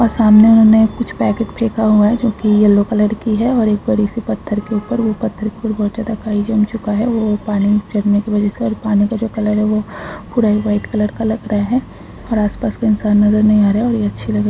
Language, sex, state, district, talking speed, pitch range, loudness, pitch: Hindi, female, Maharashtra, Dhule, 265 wpm, 210-225 Hz, -15 LUFS, 215 Hz